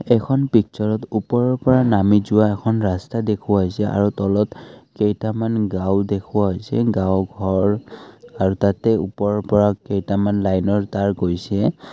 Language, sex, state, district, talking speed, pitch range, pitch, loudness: Assamese, male, Assam, Kamrup Metropolitan, 130 wpm, 100-110 Hz, 105 Hz, -19 LUFS